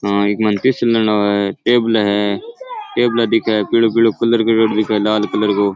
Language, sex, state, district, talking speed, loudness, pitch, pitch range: Rajasthani, male, Rajasthan, Churu, 155 wpm, -15 LUFS, 110 Hz, 105-115 Hz